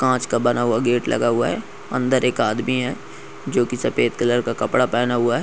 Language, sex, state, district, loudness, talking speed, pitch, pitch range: Hindi, male, Rajasthan, Nagaur, -20 LUFS, 230 wpm, 120 Hz, 120-125 Hz